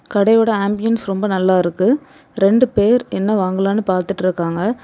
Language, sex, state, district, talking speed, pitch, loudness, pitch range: Tamil, female, Tamil Nadu, Kanyakumari, 135 wpm, 205 Hz, -16 LUFS, 190-225 Hz